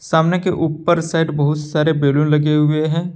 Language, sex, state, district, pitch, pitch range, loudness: Hindi, male, Jharkhand, Deoghar, 155 Hz, 150-165 Hz, -17 LUFS